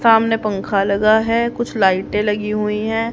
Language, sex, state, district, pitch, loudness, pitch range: Hindi, female, Haryana, Rohtak, 215 Hz, -17 LUFS, 210-225 Hz